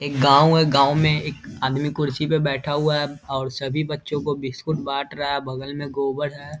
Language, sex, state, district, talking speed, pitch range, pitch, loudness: Hindi, male, Bihar, Vaishali, 210 wpm, 140-150 Hz, 145 Hz, -22 LUFS